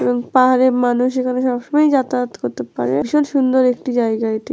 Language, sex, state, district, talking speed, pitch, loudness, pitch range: Bengali, female, West Bengal, Jalpaiguri, 170 wpm, 250 Hz, -17 LUFS, 220-255 Hz